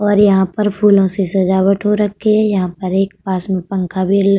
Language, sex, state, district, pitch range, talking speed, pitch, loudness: Hindi, female, Uttar Pradesh, Budaun, 190-205 Hz, 230 wpm, 195 Hz, -15 LUFS